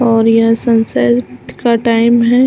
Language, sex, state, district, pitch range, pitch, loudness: Hindi, female, Chhattisgarh, Balrampur, 225-235 Hz, 230 Hz, -12 LUFS